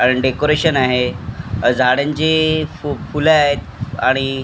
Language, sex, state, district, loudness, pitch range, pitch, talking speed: Marathi, male, Maharashtra, Mumbai Suburban, -16 LUFS, 125-150 Hz, 135 Hz, 110 wpm